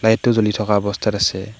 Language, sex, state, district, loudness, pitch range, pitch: Assamese, male, Assam, Hailakandi, -18 LUFS, 100-110 Hz, 105 Hz